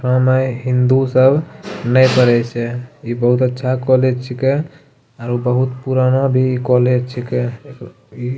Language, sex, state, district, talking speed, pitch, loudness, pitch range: Angika, male, Bihar, Bhagalpur, 145 wpm, 130 Hz, -16 LUFS, 125-130 Hz